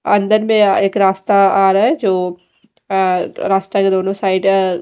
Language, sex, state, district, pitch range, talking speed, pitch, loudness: Hindi, female, Odisha, Malkangiri, 190-200 Hz, 175 wpm, 195 Hz, -14 LUFS